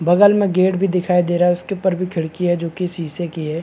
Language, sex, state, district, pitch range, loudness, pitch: Hindi, male, Bihar, Madhepura, 170-185 Hz, -18 LUFS, 180 Hz